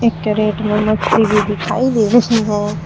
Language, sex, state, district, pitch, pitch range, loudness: Hindi, female, Uttar Pradesh, Saharanpur, 210 Hz, 210-220 Hz, -15 LUFS